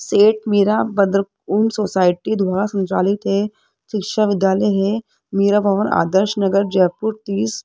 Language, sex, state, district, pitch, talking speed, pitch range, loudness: Hindi, female, Rajasthan, Jaipur, 200 Hz, 135 wpm, 195-210 Hz, -18 LUFS